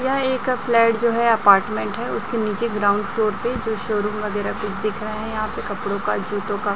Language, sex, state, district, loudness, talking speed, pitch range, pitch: Hindi, male, Chhattisgarh, Raipur, -21 LUFS, 230 wpm, 210-235 Hz, 215 Hz